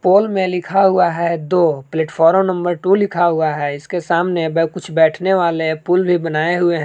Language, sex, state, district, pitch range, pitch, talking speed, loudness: Hindi, male, Jharkhand, Palamu, 160-185 Hz, 170 Hz, 190 wpm, -16 LUFS